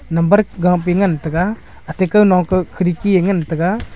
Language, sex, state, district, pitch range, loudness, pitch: Wancho, male, Arunachal Pradesh, Longding, 170-195 Hz, -15 LUFS, 180 Hz